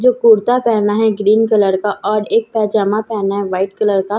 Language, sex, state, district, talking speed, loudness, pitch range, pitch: Hindi, female, Bihar, Katihar, 215 wpm, -14 LUFS, 200-220 Hz, 210 Hz